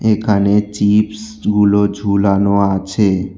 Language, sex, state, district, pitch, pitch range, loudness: Bengali, male, West Bengal, Alipurduar, 100 Hz, 100-105 Hz, -14 LUFS